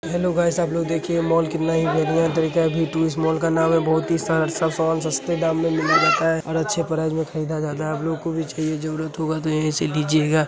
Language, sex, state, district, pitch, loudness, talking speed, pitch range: Hindi, male, Uttar Pradesh, Hamirpur, 160 Hz, -21 LUFS, 230 wpm, 155-165 Hz